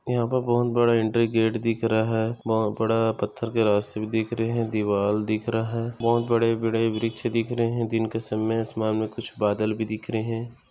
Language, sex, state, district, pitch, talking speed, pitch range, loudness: Hindi, male, Maharashtra, Nagpur, 115 Hz, 225 wpm, 110-115 Hz, -25 LUFS